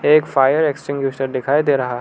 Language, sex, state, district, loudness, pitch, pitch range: Hindi, male, Arunachal Pradesh, Lower Dibang Valley, -17 LUFS, 140 Hz, 135-150 Hz